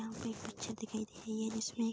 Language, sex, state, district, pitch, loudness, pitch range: Hindi, female, Bihar, Darbhanga, 225 Hz, -41 LUFS, 220-225 Hz